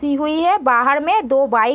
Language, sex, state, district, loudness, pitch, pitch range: Hindi, female, Bihar, East Champaran, -16 LUFS, 280 Hz, 260-310 Hz